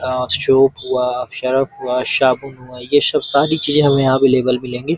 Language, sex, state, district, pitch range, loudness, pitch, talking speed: Hindi, male, Uttar Pradesh, Gorakhpur, 125-140 Hz, -15 LUFS, 130 Hz, 180 wpm